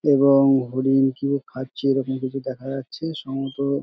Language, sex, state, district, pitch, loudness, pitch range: Bengali, male, West Bengal, Dakshin Dinajpur, 135 Hz, -22 LUFS, 130-140 Hz